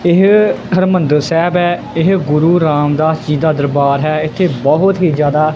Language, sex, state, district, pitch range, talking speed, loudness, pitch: Punjabi, male, Punjab, Kapurthala, 150-175 Hz, 160 wpm, -12 LUFS, 160 Hz